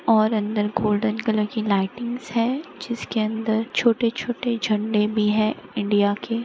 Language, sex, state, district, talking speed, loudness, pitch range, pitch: Hindi, female, Maharashtra, Pune, 150 wpm, -23 LUFS, 210-230 Hz, 220 Hz